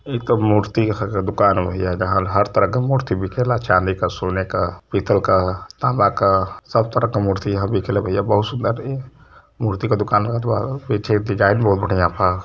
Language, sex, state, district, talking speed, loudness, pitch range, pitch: Hindi, male, Uttar Pradesh, Varanasi, 200 wpm, -19 LUFS, 95-115 Hz, 105 Hz